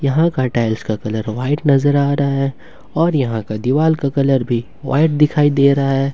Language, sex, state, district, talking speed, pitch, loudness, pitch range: Hindi, male, Jharkhand, Ranchi, 205 wpm, 140 Hz, -16 LUFS, 125-145 Hz